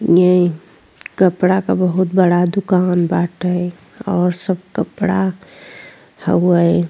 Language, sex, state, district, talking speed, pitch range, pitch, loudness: Bhojpuri, female, Uttar Pradesh, Deoria, 95 wpm, 175-185 Hz, 180 Hz, -16 LUFS